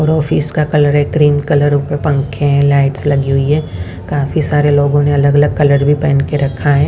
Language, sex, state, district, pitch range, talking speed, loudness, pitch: Hindi, female, Haryana, Rohtak, 140-150 Hz, 225 wpm, -12 LUFS, 145 Hz